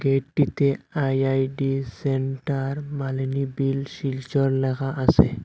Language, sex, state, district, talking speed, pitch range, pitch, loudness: Bengali, male, Assam, Hailakandi, 75 wpm, 135-140 Hz, 135 Hz, -24 LUFS